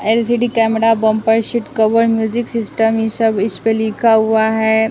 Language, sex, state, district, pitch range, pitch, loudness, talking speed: Hindi, female, Bihar, West Champaran, 220-230 Hz, 225 Hz, -15 LUFS, 170 wpm